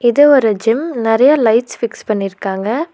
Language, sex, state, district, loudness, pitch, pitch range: Tamil, female, Tamil Nadu, Nilgiris, -14 LUFS, 230 Hz, 215-270 Hz